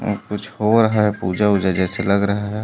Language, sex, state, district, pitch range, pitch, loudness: Chhattisgarhi, male, Chhattisgarh, Raigarh, 100-105 Hz, 105 Hz, -18 LUFS